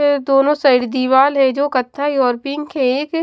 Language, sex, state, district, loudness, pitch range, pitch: Hindi, female, Haryana, Jhajjar, -16 LUFS, 260-290 Hz, 275 Hz